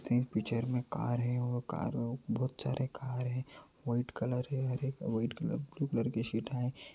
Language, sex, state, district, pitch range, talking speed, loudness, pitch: Hindi, male, Uttar Pradesh, Ghazipur, 120-135 Hz, 180 wpm, -36 LUFS, 125 Hz